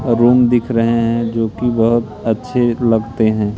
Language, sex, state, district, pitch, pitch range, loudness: Hindi, male, Madhya Pradesh, Katni, 115 Hz, 115-120 Hz, -15 LUFS